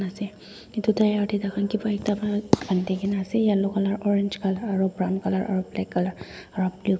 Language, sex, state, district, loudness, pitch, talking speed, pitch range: Nagamese, female, Nagaland, Dimapur, -25 LUFS, 200 Hz, 205 wpm, 190-205 Hz